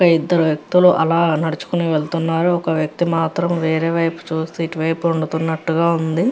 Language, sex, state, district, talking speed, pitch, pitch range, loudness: Telugu, female, Andhra Pradesh, Chittoor, 125 wpm, 165 Hz, 160-170 Hz, -18 LUFS